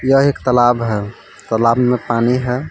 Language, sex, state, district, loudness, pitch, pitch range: Hindi, male, Jharkhand, Palamu, -15 LUFS, 125 Hz, 115-125 Hz